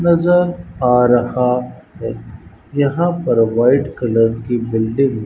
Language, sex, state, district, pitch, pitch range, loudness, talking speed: Hindi, male, Rajasthan, Bikaner, 125 Hz, 115-140 Hz, -16 LUFS, 125 wpm